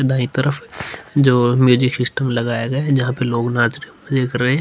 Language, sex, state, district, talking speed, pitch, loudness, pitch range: Hindi, male, Uttar Pradesh, Hamirpur, 235 wpm, 125 Hz, -17 LUFS, 120-135 Hz